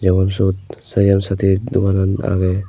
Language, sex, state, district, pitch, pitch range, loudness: Chakma, male, Tripura, Unakoti, 95 Hz, 95-100 Hz, -17 LUFS